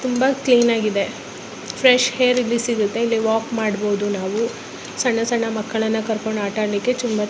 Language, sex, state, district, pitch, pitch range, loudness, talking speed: Kannada, female, Karnataka, Raichur, 225 Hz, 215-245 Hz, -20 LUFS, 140 wpm